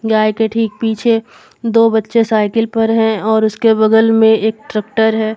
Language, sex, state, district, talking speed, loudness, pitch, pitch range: Hindi, female, Jharkhand, Garhwa, 180 wpm, -13 LUFS, 220 Hz, 220-225 Hz